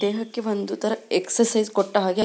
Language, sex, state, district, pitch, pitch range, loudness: Kannada, female, Karnataka, Belgaum, 215 Hz, 205-225 Hz, -23 LUFS